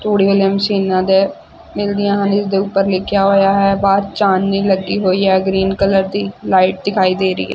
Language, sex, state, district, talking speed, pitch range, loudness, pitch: Punjabi, female, Punjab, Fazilka, 190 wpm, 190-200 Hz, -14 LUFS, 195 Hz